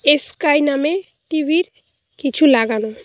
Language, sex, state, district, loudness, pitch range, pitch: Bengali, female, West Bengal, Cooch Behar, -17 LUFS, 275-315 Hz, 295 Hz